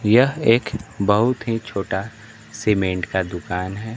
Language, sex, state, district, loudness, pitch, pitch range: Hindi, male, Bihar, Kaimur, -21 LUFS, 110 Hz, 95-115 Hz